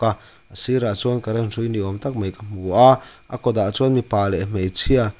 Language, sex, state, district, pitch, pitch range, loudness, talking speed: Mizo, male, Mizoram, Aizawl, 110 Hz, 100-125 Hz, -19 LUFS, 220 wpm